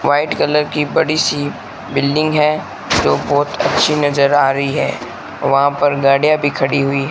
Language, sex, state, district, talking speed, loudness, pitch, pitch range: Hindi, male, Rajasthan, Bikaner, 160 wpm, -15 LUFS, 145 Hz, 140-150 Hz